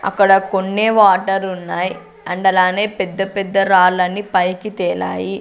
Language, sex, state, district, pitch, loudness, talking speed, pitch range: Telugu, female, Andhra Pradesh, Sri Satya Sai, 190 Hz, -16 LUFS, 120 wpm, 180-195 Hz